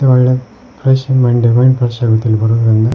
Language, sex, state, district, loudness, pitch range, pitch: Kannada, male, Karnataka, Koppal, -12 LUFS, 115-130 Hz, 120 Hz